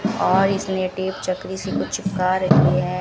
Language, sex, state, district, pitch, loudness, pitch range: Hindi, female, Rajasthan, Bikaner, 185 Hz, -20 LUFS, 185-190 Hz